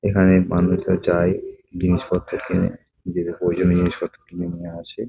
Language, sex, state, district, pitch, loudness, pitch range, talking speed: Bengali, male, West Bengal, Kolkata, 90 Hz, -21 LUFS, 85-95 Hz, 130 wpm